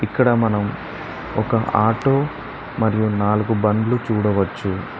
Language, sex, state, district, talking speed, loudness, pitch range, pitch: Telugu, male, Telangana, Mahabubabad, 95 wpm, -19 LUFS, 105-115 Hz, 110 Hz